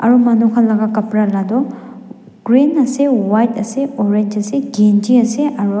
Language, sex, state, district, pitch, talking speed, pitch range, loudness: Nagamese, female, Nagaland, Dimapur, 230 Hz, 155 wpm, 210-250 Hz, -14 LUFS